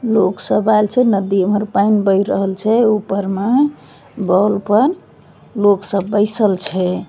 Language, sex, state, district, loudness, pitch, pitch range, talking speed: Maithili, female, Bihar, Begusarai, -15 LUFS, 205 Hz, 195-215 Hz, 150 wpm